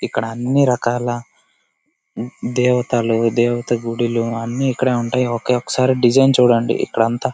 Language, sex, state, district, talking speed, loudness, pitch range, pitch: Telugu, male, Karnataka, Bellary, 130 wpm, -17 LUFS, 115-125 Hz, 120 Hz